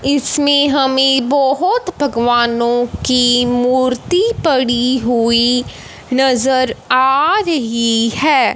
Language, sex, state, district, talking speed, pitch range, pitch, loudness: Hindi, female, Punjab, Fazilka, 85 wpm, 245-285 Hz, 260 Hz, -14 LUFS